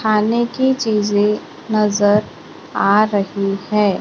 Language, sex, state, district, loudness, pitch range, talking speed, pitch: Hindi, female, Maharashtra, Gondia, -17 LUFS, 205-215 Hz, 105 wpm, 210 Hz